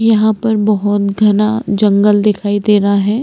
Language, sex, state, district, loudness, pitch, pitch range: Hindi, female, Chhattisgarh, Bastar, -13 LUFS, 210 Hz, 205-215 Hz